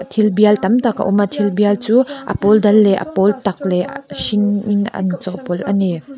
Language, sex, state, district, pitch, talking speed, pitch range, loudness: Mizo, female, Mizoram, Aizawl, 205 Hz, 235 wpm, 190-210 Hz, -16 LUFS